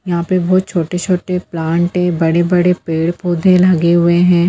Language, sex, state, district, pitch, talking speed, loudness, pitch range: Bhojpuri, female, Bihar, Saran, 175 Hz, 145 wpm, -14 LUFS, 170-180 Hz